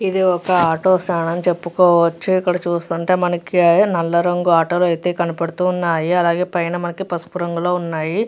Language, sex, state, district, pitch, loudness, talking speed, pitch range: Telugu, female, Andhra Pradesh, Chittoor, 175 Hz, -17 LUFS, 145 wpm, 170-180 Hz